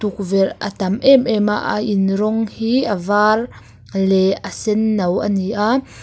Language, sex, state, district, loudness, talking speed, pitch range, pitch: Mizo, female, Mizoram, Aizawl, -17 LUFS, 190 wpm, 195-220 Hz, 210 Hz